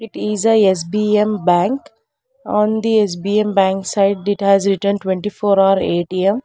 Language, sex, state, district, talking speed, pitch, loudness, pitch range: English, female, Karnataka, Bangalore, 150 wpm, 200 Hz, -16 LUFS, 195-215 Hz